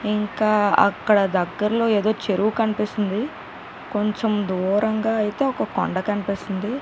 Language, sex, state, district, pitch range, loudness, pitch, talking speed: Telugu, female, Telangana, Karimnagar, 205-220 Hz, -22 LUFS, 210 Hz, 115 wpm